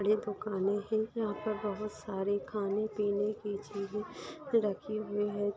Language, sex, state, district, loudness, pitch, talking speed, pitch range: Hindi, female, Bihar, Gaya, -34 LUFS, 210 Hz, 140 wpm, 205-215 Hz